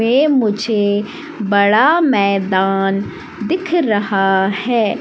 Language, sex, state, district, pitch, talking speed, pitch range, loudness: Hindi, female, Madhya Pradesh, Katni, 210 Hz, 85 wpm, 200-270 Hz, -15 LUFS